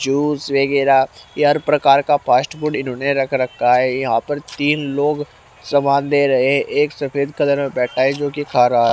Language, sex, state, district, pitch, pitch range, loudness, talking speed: Hindi, male, Haryana, Rohtak, 140 Hz, 130-145 Hz, -17 LUFS, 180 wpm